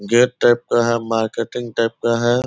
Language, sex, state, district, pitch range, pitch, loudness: Hindi, male, Bihar, Purnia, 115-120 Hz, 115 Hz, -18 LUFS